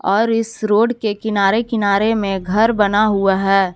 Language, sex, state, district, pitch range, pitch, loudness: Hindi, female, Jharkhand, Palamu, 195-220 Hz, 210 Hz, -16 LUFS